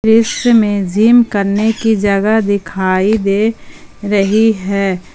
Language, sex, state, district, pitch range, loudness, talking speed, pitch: Hindi, female, Jharkhand, Palamu, 200-220 Hz, -13 LUFS, 115 wpm, 205 Hz